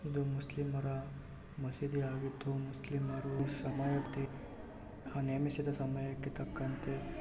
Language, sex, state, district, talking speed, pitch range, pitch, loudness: Kannada, male, Karnataka, Raichur, 60 wpm, 135-140 Hz, 135 Hz, -39 LUFS